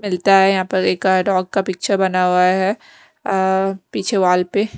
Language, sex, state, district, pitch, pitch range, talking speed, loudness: Hindi, female, Punjab, Kapurthala, 190 Hz, 185-195 Hz, 200 wpm, -17 LUFS